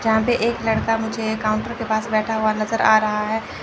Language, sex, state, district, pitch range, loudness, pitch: Hindi, male, Chandigarh, Chandigarh, 215-225 Hz, -20 LUFS, 220 Hz